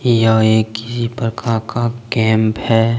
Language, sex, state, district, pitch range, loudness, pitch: Hindi, male, Jharkhand, Deoghar, 110-120 Hz, -16 LUFS, 115 Hz